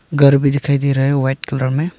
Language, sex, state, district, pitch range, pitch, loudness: Hindi, male, Arunachal Pradesh, Longding, 135-140 Hz, 140 Hz, -15 LUFS